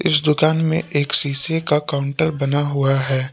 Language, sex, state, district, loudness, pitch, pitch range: Hindi, male, Jharkhand, Palamu, -16 LUFS, 145 Hz, 140-155 Hz